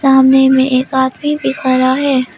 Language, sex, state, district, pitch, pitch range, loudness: Hindi, female, Arunachal Pradesh, Lower Dibang Valley, 265 Hz, 260-270 Hz, -12 LUFS